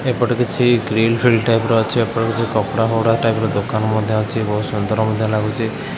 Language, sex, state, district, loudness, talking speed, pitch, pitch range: Odia, male, Odisha, Khordha, -17 LUFS, 210 wpm, 115 Hz, 110-115 Hz